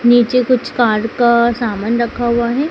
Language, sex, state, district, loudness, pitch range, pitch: Hindi, female, Madhya Pradesh, Dhar, -14 LUFS, 235-245 Hz, 240 Hz